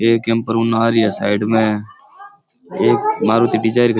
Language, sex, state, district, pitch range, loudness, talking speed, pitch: Rajasthani, male, Rajasthan, Churu, 110-120 Hz, -16 LUFS, 195 wpm, 115 Hz